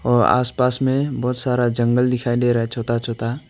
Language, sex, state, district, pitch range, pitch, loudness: Hindi, male, Arunachal Pradesh, Longding, 120-125 Hz, 125 Hz, -19 LUFS